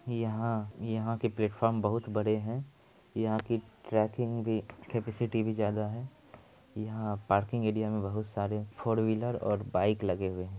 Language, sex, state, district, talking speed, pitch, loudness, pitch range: Maithili, male, Bihar, Supaul, 160 wpm, 110 Hz, -33 LUFS, 105-115 Hz